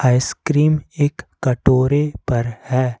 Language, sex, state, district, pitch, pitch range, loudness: Hindi, male, Jharkhand, Ranchi, 130 Hz, 125-150 Hz, -18 LUFS